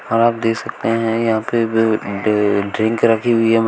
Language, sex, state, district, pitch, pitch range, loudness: Hindi, male, Uttar Pradesh, Shamli, 115 Hz, 110-115 Hz, -17 LUFS